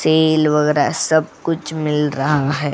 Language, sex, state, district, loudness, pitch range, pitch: Hindi, female, Goa, North and South Goa, -17 LUFS, 145-155 Hz, 150 Hz